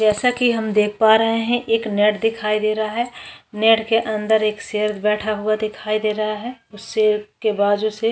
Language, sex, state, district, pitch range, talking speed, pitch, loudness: Hindi, female, Maharashtra, Chandrapur, 210-225 Hz, 215 wpm, 215 Hz, -19 LUFS